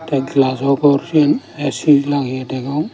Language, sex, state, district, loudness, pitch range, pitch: Chakma, male, Tripura, Dhalai, -16 LUFS, 135-145 Hz, 140 Hz